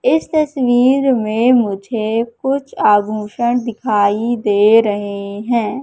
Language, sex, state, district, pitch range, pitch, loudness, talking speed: Hindi, female, Madhya Pradesh, Katni, 210-250 Hz, 230 Hz, -15 LUFS, 105 wpm